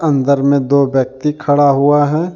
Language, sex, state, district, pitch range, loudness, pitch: Hindi, male, Jharkhand, Deoghar, 140-150 Hz, -13 LUFS, 140 Hz